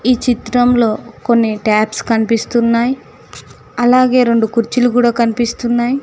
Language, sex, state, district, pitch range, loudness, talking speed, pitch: Telugu, female, Telangana, Mahabubabad, 230-245 Hz, -14 LUFS, 100 wpm, 235 Hz